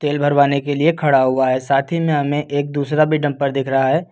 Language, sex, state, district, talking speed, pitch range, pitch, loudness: Hindi, male, Uttar Pradesh, Lucknow, 260 wpm, 135-150 Hz, 145 Hz, -17 LUFS